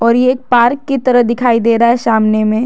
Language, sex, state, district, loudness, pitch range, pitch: Hindi, female, Jharkhand, Garhwa, -12 LUFS, 230-250 Hz, 235 Hz